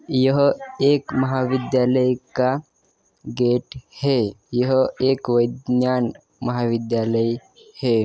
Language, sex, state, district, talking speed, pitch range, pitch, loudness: Hindi, male, Maharashtra, Dhule, 80 wpm, 120-135 Hz, 130 Hz, -21 LUFS